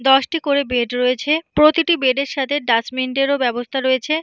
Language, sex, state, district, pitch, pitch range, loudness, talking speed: Bengali, female, West Bengal, Purulia, 270 Hz, 255-295 Hz, -18 LUFS, 225 wpm